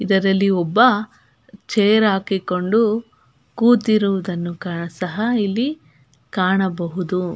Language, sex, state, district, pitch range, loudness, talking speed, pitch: Kannada, female, Karnataka, Belgaum, 180-215 Hz, -19 LUFS, 65 wpm, 195 Hz